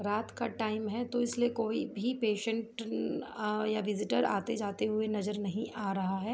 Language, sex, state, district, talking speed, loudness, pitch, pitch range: Hindi, female, Jharkhand, Sahebganj, 190 wpm, -34 LUFS, 215 Hz, 210-230 Hz